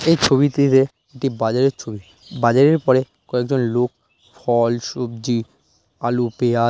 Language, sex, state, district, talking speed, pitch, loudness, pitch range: Bengali, male, West Bengal, North 24 Parganas, 125 wpm, 125 Hz, -19 LUFS, 115-135 Hz